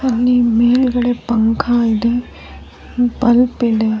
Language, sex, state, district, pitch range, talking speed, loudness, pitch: Kannada, female, Karnataka, Dharwad, 230-245 Hz, 90 wpm, -15 LUFS, 240 Hz